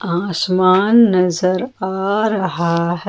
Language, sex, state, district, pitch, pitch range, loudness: Hindi, female, Jharkhand, Ranchi, 185 Hz, 175-200 Hz, -16 LUFS